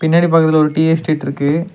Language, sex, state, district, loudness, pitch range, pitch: Tamil, male, Tamil Nadu, Nilgiris, -14 LUFS, 155-165 Hz, 160 Hz